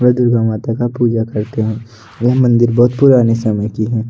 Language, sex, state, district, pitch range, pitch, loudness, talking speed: Hindi, male, Odisha, Nuapada, 110-120 Hz, 115 Hz, -14 LUFS, 205 wpm